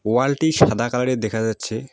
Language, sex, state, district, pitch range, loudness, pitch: Bengali, male, West Bengal, Alipurduar, 110-135 Hz, -20 LUFS, 125 Hz